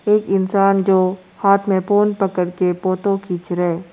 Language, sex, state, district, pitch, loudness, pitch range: Hindi, male, Arunachal Pradesh, Lower Dibang Valley, 190 Hz, -18 LUFS, 180-195 Hz